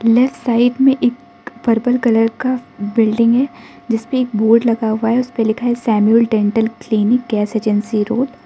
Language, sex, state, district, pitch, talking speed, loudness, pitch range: Hindi, female, Arunachal Pradesh, Lower Dibang Valley, 230 Hz, 175 wpm, -16 LUFS, 220-245 Hz